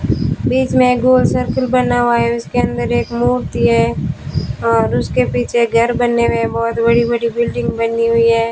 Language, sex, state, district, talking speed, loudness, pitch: Hindi, female, Rajasthan, Bikaner, 190 wpm, -15 LUFS, 230 Hz